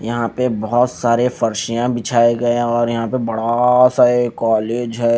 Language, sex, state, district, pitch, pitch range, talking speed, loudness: Hindi, male, Haryana, Charkhi Dadri, 120 Hz, 115-120 Hz, 185 wpm, -16 LUFS